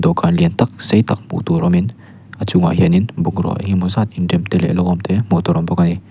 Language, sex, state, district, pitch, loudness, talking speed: Mizo, male, Mizoram, Aizawl, 110 Hz, -16 LUFS, 285 wpm